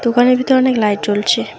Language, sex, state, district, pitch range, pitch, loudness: Bengali, female, West Bengal, Alipurduar, 205-255 Hz, 235 Hz, -14 LUFS